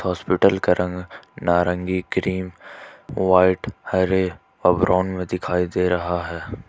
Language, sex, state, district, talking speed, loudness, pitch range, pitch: Hindi, male, Jharkhand, Ranchi, 125 wpm, -21 LUFS, 90-95 Hz, 90 Hz